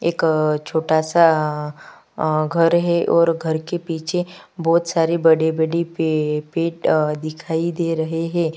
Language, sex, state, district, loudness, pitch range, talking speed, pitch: Hindi, female, Chhattisgarh, Kabirdham, -19 LUFS, 155-170 Hz, 160 wpm, 165 Hz